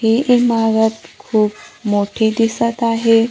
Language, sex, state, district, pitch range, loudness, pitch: Marathi, female, Maharashtra, Gondia, 220-230 Hz, -16 LUFS, 225 Hz